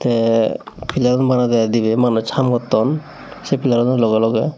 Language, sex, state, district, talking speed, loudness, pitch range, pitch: Chakma, male, Tripura, Dhalai, 170 wpm, -17 LUFS, 115-130 Hz, 120 Hz